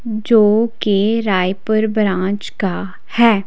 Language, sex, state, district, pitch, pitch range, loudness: Hindi, female, Chhattisgarh, Raipur, 210 Hz, 195-220 Hz, -16 LUFS